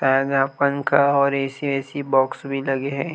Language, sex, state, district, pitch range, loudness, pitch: Chhattisgarhi, male, Chhattisgarh, Rajnandgaon, 135-140 Hz, -21 LUFS, 140 Hz